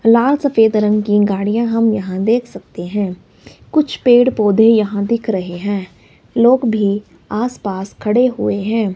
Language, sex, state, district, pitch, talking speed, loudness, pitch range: Hindi, male, Himachal Pradesh, Shimla, 215 Hz, 155 wpm, -15 LUFS, 200-235 Hz